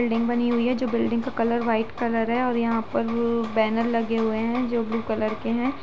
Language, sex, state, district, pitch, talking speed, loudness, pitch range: Hindi, female, Uttar Pradesh, Budaun, 230 Hz, 245 wpm, -24 LUFS, 230-240 Hz